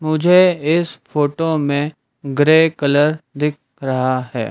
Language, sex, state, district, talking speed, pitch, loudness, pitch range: Hindi, male, Madhya Pradesh, Dhar, 120 wpm, 150 Hz, -16 LUFS, 135-160 Hz